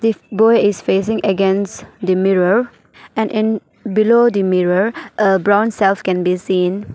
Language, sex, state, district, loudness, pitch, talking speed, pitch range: English, female, Arunachal Pradesh, Papum Pare, -16 LUFS, 200 Hz, 155 wpm, 190-220 Hz